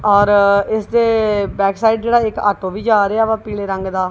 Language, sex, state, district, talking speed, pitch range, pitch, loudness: Punjabi, female, Punjab, Kapurthala, 175 wpm, 200-220 Hz, 205 Hz, -15 LUFS